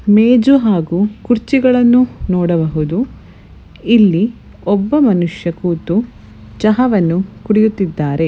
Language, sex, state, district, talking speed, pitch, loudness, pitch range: Kannada, female, Karnataka, Bellary, 80 wpm, 205 Hz, -14 LUFS, 170-235 Hz